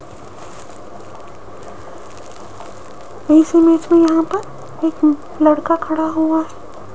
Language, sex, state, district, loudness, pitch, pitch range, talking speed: Hindi, female, Rajasthan, Jaipur, -15 LUFS, 320 Hz, 310-330 Hz, 85 wpm